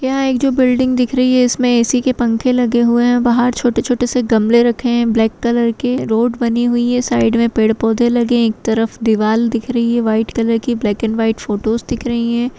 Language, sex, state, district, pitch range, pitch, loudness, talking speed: Kumaoni, female, Uttarakhand, Tehri Garhwal, 225-245 Hz, 235 Hz, -15 LUFS, 235 wpm